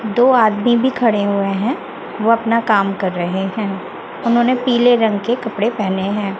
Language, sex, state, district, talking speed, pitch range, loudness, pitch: Hindi, female, Chhattisgarh, Raipur, 180 wpm, 200-240 Hz, -16 LUFS, 220 Hz